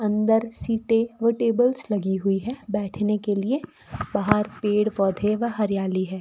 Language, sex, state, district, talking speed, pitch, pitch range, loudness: Hindi, female, Rajasthan, Bikaner, 155 wpm, 210 Hz, 200-230 Hz, -24 LUFS